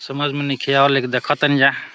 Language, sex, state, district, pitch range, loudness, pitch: Hindi, male, Uttar Pradesh, Deoria, 135-145 Hz, -17 LUFS, 140 Hz